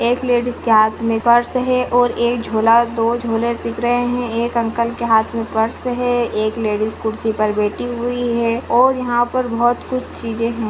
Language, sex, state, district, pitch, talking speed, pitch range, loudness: Hindi, female, Goa, North and South Goa, 235 Hz, 200 wpm, 225-245 Hz, -17 LUFS